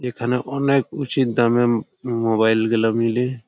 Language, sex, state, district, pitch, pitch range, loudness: Bengali, male, West Bengal, Malda, 120 Hz, 115-130 Hz, -20 LUFS